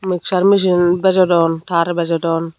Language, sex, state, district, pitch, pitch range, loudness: Chakma, female, Tripura, Unakoti, 175 Hz, 165-185 Hz, -15 LUFS